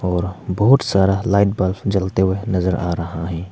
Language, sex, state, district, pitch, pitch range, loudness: Hindi, male, Arunachal Pradesh, Papum Pare, 95 Hz, 90-100 Hz, -18 LUFS